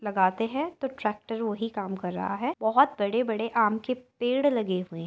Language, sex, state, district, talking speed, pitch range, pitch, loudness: Hindi, female, Uttar Pradesh, Jyotiba Phule Nagar, 200 wpm, 205-250 Hz, 225 Hz, -27 LUFS